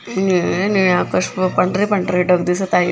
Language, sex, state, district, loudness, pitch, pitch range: Marathi, female, Maharashtra, Chandrapur, -17 LUFS, 185 Hz, 180-195 Hz